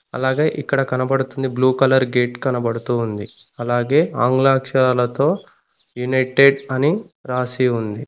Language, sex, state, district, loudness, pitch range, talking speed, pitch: Telugu, male, Telangana, Mahabubabad, -18 LUFS, 120-135 Hz, 110 wpm, 130 Hz